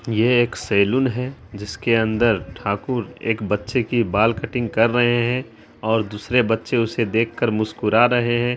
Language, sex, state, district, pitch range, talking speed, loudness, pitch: Hindi, female, Bihar, Araria, 110-120 Hz, 170 wpm, -20 LUFS, 115 Hz